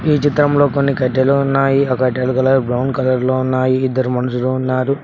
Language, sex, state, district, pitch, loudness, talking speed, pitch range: Telugu, male, Telangana, Mahabubabad, 130 Hz, -16 LUFS, 190 wpm, 130-140 Hz